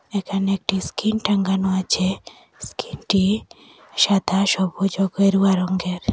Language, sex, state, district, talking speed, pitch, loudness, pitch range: Bengali, female, Assam, Hailakandi, 105 wpm, 195 Hz, -21 LUFS, 190-200 Hz